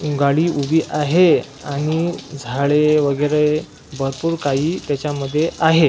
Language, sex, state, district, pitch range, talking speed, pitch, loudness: Marathi, male, Maharashtra, Washim, 140-160 Hz, 100 wpm, 150 Hz, -18 LUFS